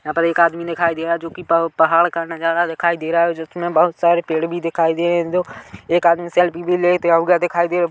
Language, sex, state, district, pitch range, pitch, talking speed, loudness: Hindi, male, Chhattisgarh, Kabirdham, 165-175 Hz, 170 Hz, 255 wpm, -17 LUFS